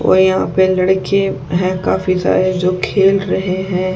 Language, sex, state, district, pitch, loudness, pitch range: Hindi, female, Haryana, Charkhi Dadri, 185 Hz, -15 LUFS, 185-190 Hz